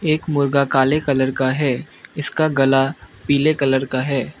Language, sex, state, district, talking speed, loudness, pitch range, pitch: Hindi, male, Arunachal Pradesh, Lower Dibang Valley, 165 wpm, -18 LUFS, 135-150 Hz, 140 Hz